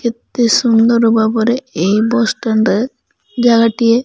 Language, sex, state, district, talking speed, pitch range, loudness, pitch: Odia, male, Odisha, Malkangiri, 120 wpm, 220-235 Hz, -13 LUFS, 230 Hz